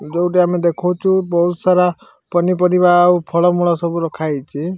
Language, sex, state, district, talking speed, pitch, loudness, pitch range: Odia, male, Odisha, Malkangiri, 125 wpm, 175 Hz, -15 LUFS, 170-180 Hz